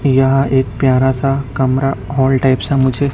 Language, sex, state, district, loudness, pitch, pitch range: Hindi, male, Chhattisgarh, Raipur, -14 LUFS, 135 Hz, 130-135 Hz